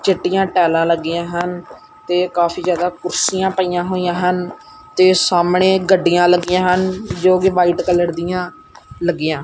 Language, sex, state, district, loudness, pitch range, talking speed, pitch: Punjabi, male, Punjab, Kapurthala, -16 LUFS, 175-185 Hz, 135 wpm, 180 Hz